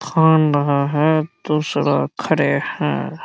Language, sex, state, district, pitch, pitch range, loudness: Hindi, male, Bihar, Araria, 155 Hz, 145-160 Hz, -18 LUFS